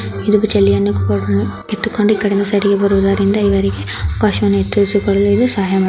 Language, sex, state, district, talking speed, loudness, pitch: Kannada, female, Karnataka, Belgaum, 90 wpm, -15 LUFS, 195 Hz